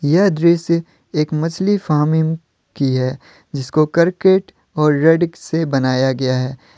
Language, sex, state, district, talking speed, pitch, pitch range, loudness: Hindi, male, Jharkhand, Deoghar, 135 wpm, 155 Hz, 135-170 Hz, -17 LUFS